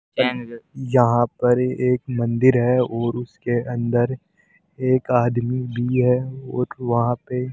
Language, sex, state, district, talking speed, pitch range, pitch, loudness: Hindi, male, Rajasthan, Jaipur, 125 wpm, 120-130 Hz, 125 Hz, -21 LUFS